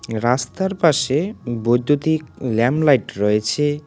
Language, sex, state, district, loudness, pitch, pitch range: Bengali, male, West Bengal, Cooch Behar, -19 LUFS, 135 Hz, 120-155 Hz